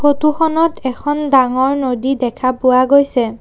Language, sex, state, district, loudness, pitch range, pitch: Assamese, female, Assam, Sonitpur, -14 LUFS, 255-290 Hz, 265 Hz